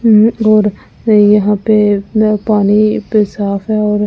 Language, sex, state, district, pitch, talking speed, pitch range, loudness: Hindi, female, Delhi, New Delhi, 210 Hz, 105 wpm, 205-215 Hz, -11 LUFS